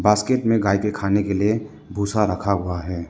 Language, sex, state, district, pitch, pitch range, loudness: Hindi, male, Arunachal Pradesh, Lower Dibang Valley, 100 Hz, 100-105 Hz, -21 LUFS